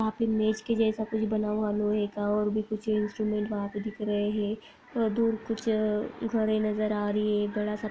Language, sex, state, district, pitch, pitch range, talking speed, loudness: Hindi, female, Maharashtra, Aurangabad, 215 Hz, 210-220 Hz, 210 wpm, -29 LUFS